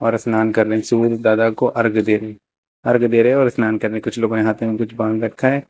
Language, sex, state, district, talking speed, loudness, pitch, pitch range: Hindi, male, Uttar Pradesh, Lucknow, 275 wpm, -17 LUFS, 115 Hz, 110-115 Hz